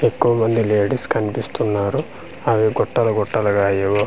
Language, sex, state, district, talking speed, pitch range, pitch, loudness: Telugu, male, Andhra Pradesh, Manyam, 120 wpm, 100-115 Hz, 105 Hz, -19 LUFS